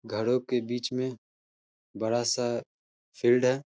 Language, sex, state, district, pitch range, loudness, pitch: Hindi, male, Uttar Pradesh, Hamirpur, 120-125 Hz, -29 LUFS, 120 Hz